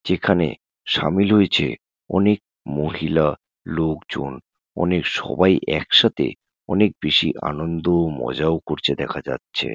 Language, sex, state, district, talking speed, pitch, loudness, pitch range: Bengali, male, West Bengal, Jalpaiguri, 130 wpm, 80 Hz, -20 LUFS, 75-95 Hz